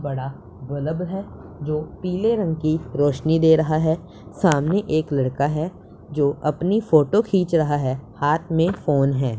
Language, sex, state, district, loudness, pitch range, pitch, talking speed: Hindi, male, Punjab, Pathankot, -21 LUFS, 145-170 Hz, 155 Hz, 160 wpm